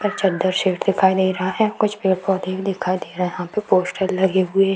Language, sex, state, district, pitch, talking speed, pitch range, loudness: Hindi, female, Bihar, Darbhanga, 190 Hz, 240 wpm, 185-195 Hz, -20 LUFS